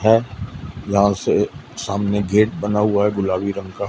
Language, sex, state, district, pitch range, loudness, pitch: Hindi, male, Madhya Pradesh, Umaria, 100-105 Hz, -19 LUFS, 100 Hz